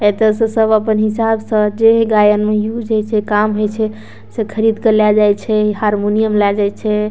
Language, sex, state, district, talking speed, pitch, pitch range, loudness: Maithili, female, Bihar, Darbhanga, 220 wpm, 215 Hz, 210-220 Hz, -14 LUFS